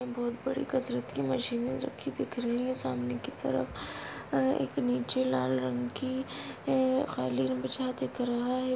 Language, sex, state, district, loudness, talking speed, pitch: Hindi, female, Chhattisgarh, Balrampur, -32 LUFS, 125 wpm, 235 Hz